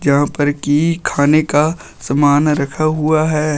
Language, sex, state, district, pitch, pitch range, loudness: Hindi, male, Uttar Pradesh, Shamli, 150 Hz, 145-155 Hz, -15 LUFS